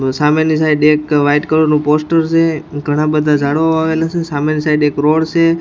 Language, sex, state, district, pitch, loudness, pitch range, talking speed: Gujarati, male, Gujarat, Gandhinagar, 155 Hz, -13 LUFS, 150-160 Hz, 180 wpm